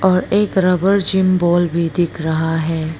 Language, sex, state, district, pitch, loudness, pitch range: Hindi, female, Arunachal Pradesh, Lower Dibang Valley, 175 Hz, -16 LUFS, 165-190 Hz